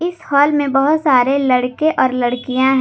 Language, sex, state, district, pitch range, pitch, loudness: Hindi, female, Jharkhand, Garhwa, 255-300 Hz, 275 Hz, -15 LUFS